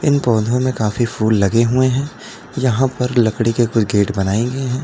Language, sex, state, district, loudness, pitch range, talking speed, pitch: Hindi, male, Uttar Pradesh, Lalitpur, -17 LUFS, 110-130 Hz, 210 wpm, 120 Hz